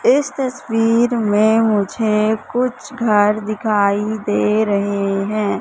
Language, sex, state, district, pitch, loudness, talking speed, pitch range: Hindi, female, Madhya Pradesh, Katni, 215 Hz, -17 LUFS, 105 wpm, 205-235 Hz